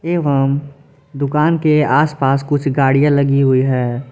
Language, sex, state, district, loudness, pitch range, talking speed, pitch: Hindi, male, Jharkhand, Palamu, -15 LUFS, 135-150 Hz, 130 wpm, 140 Hz